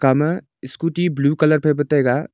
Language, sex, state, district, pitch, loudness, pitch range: Wancho, male, Arunachal Pradesh, Longding, 150 Hz, -18 LUFS, 140-160 Hz